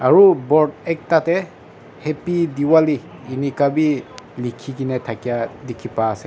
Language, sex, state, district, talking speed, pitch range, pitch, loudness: Nagamese, male, Nagaland, Dimapur, 145 wpm, 125-160 Hz, 145 Hz, -19 LUFS